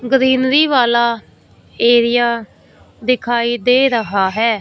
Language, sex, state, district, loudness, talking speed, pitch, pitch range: Hindi, female, Punjab, Fazilka, -14 LUFS, 90 wpm, 240 Hz, 235-255 Hz